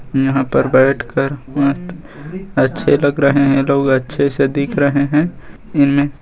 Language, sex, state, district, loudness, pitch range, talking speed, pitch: Hindi, male, Chhattisgarh, Bilaspur, -15 LUFS, 135-145 Hz, 135 wpm, 140 Hz